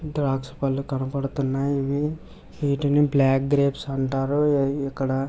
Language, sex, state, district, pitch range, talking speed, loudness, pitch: Telugu, male, Andhra Pradesh, Visakhapatnam, 135-145 Hz, 115 wpm, -24 LUFS, 140 Hz